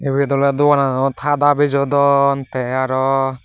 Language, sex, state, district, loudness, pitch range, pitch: Chakma, male, Tripura, Dhalai, -16 LUFS, 135-145 Hz, 140 Hz